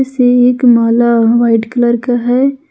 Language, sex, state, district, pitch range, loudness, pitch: Hindi, female, Jharkhand, Ranchi, 235-250 Hz, -10 LUFS, 240 Hz